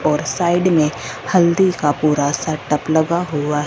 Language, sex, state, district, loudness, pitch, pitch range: Hindi, female, Punjab, Fazilka, -17 LUFS, 155 Hz, 150-175 Hz